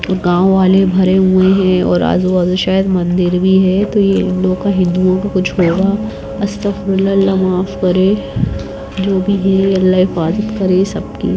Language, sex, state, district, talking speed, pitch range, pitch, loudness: Hindi, female, Bihar, Lakhisarai, 165 wpm, 185-195 Hz, 190 Hz, -13 LUFS